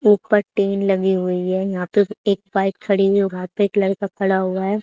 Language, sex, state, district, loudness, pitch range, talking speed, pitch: Hindi, female, Haryana, Charkhi Dadri, -19 LUFS, 190-200 Hz, 235 wpm, 195 Hz